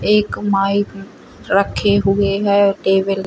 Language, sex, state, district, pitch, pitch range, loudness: Hindi, female, Chhattisgarh, Rajnandgaon, 200 Hz, 195-200 Hz, -16 LUFS